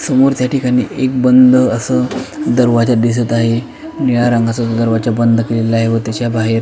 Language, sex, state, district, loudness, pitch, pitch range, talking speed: Marathi, male, Maharashtra, Pune, -13 LUFS, 120 Hz, 115-125 Hz, 180 wpm